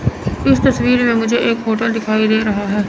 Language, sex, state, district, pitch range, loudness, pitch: Hindi, female, Chandigarh, Chandigarh, 215-230 Hz, -15 LUFS, 225 Hz